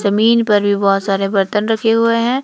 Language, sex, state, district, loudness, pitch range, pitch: Hindi, female, Himachal Pradesh, Shimla, -14 LUFS, 200-230 Hz, 210 Hz